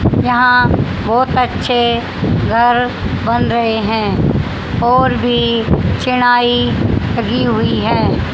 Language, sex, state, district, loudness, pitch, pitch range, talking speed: Hindi, female, Haryana, Rohtak, -14 LUFS, 235 Hz, 220-245 Hz, 95 wpm